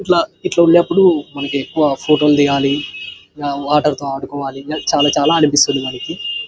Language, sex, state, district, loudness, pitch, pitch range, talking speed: Telugu, male, Andhra Pradesh, Anantapur, -15 LUFS, 145 Hz, 140-160 Hz, 150 wpm